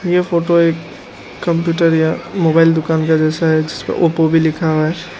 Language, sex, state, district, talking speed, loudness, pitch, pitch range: Hindi, male, Arunachal Pradesh, Lower Dibang Valley, 185 wpm, -15 LUFS, 165 Hz, 160-170 Hz